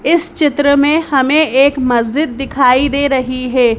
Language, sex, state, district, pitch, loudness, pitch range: Hindi, female, Madhya Pradesh, Bhopal, 275 Hz, -12 LUFS, 255-295 Hz